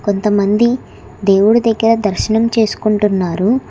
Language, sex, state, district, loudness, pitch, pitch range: Telugu, female, Telangana, Hyderabad, -14 LUFS, 215 Hz, 205-225 Hz